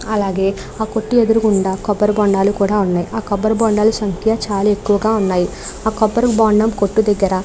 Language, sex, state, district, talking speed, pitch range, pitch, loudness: Telugu, female, Andhra Pradesh, Krishna, 155 wpm, 200-220 Hz, 210 Hz, -16 LUFS